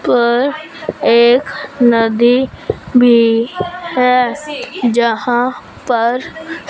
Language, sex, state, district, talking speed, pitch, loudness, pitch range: Hindi, female, Punjab, Fazilka, 65 wpm, 245 Hz, -13 LUFS, 235-280 Hz